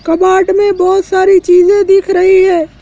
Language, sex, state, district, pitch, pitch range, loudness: Hindi, male, Madhya Pradesh, Dhar, 375 Hz, 365-385 Hz, -9 LUFS